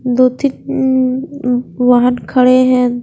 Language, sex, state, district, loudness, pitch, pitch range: Hindi, female, Haryana, Charkhi Dadri, -13 LUFS, 255 Hz, 245-260 Hz